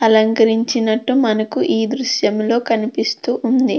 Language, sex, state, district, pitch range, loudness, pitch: Telugu, female, Andhra Pradesh, Krishna, 220-250 Hz, -16 LUFS, 230 Hz